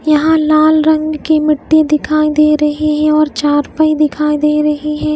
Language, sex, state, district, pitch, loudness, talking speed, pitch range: Hindi, female, Himachal Pradesh, Shimla, 305 Hz, -12 LUFS, 175 wpm, 300-310 Hz